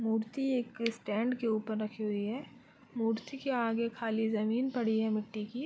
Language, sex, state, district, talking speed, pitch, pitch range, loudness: Hindi, female, Bihar, Gopalganj, 180 wpm, 225 Hz, 220-245 Hz, -34 LUFS